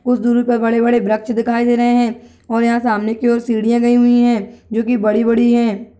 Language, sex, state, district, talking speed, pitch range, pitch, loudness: Hindi, female, Uttarakhand, Tehri Garhwal, 220 wpm, 230-240 Hz, 235 Hz, -15 LUFS